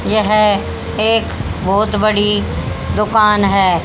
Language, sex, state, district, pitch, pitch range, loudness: Hindi, female, Haryana, Rohtak, 210 Hz, 200-215 Hz, -15 LUFS